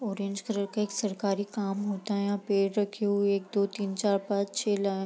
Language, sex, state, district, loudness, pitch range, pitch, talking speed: Hindi, female, Bihar, East Champaran, -29 LUFS, 200-205 Hz, 200 Hz, 225 wpm